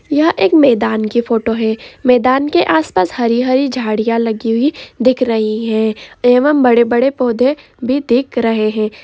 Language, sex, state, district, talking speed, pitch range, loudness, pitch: Hindi, female, Bihar, Araria, 155 wpm, 225-260 Hz, -14 LUFS, 240 Hz